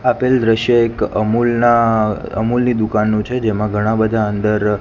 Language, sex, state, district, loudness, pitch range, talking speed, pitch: Gujarati, male, Gujarat, Gandhinagar, -16 LUFS, 105-120 Hz, 160 wpm, 110 Hz